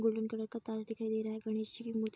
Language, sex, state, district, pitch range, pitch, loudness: Hindi, female, Bihar, Darbhanga, 220-225 Hz, 220 Hz, -38 LUFS